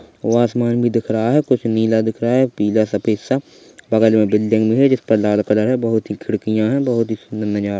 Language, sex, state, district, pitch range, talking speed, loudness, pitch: Hindi, male, Chhattisgarh, Bilaspur, 110-120 Hz, 245 wpm, -17 LUFS, 110 Hz